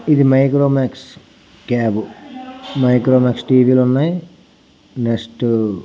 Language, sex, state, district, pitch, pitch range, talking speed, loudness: Telugu, male, Andhra Pradesh, Srikakulam, 130 Hz, 115-140 Hz, 90 wpm, -16 LUFS